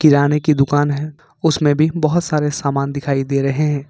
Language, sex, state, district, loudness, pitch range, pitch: Hindi, male, Jharkhand, Ranchi, -17 LUFS, 140-155 Hz, 145 Hz